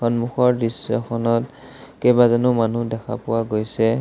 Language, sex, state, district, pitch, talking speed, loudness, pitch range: Assamese, male, Assam, Sonitpur, 115 Hz, 105 wpm, -20 LUFS, 115-125 Hz